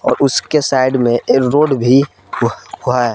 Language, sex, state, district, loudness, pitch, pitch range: Hindi, male, Jharkhand, Palamu, -14 LUFS, 130 Hz, 120-140 Hz